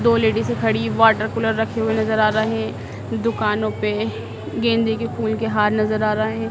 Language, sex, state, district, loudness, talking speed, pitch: Hindi, female, Madhya Pradesh, Dhar, -20 LUFS, 175 wpm, 215 Hz